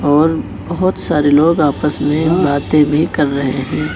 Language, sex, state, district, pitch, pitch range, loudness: Hindi, male, Chhattisgarh, Raipur, 150 Hz, 145-160 Hz, -14 LUFS